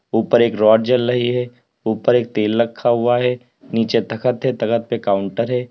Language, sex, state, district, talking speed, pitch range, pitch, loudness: Hindi, male, Uttar Pradesh, Lalitpur, 200 wpm, 110-125 Hz, 120 Hz, -18 LUFS